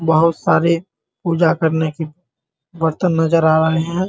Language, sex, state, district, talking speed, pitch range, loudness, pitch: Hindi, male, Bihar, Muzaffarpur, 160 wpm, 160-170 Hz, -17 LUFS, 160 Hz